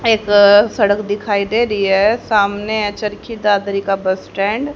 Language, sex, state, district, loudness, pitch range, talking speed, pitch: Hindi, female, Haryana, Charkhi Dadri, -15 LUFS, 200-220 Hz, 175 wpm, 205 Hz